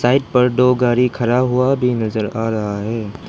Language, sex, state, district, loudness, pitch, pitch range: Hindi, male, Arunachal Pradesh, Lower Dibang Valley, -17 LUFS, 120 Hz, 110-125 Hz